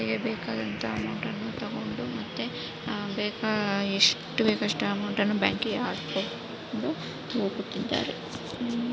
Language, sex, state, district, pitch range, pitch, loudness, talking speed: Kannada, female, Karnataka, Shimoga, 200-225 Hz, 210 Hz, -29 LUFS, 110 wpm